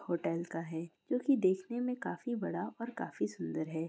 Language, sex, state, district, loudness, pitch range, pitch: Hindi, female, Bihar, Gaya, -36 LUFS, 165-240 Hz, 185 Hz